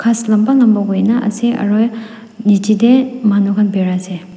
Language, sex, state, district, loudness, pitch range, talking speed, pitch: Nagamese, female, Nagaland, Dimapur, -13 LUFS, 200-230 Hz, 140 wpm, 215 Hz